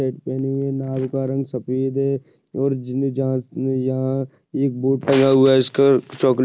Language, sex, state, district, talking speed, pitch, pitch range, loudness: Hindi, male, Maharashtra, Dhule, 195 wpm, 135 Hz, 130-135 Hz, -20 LUFS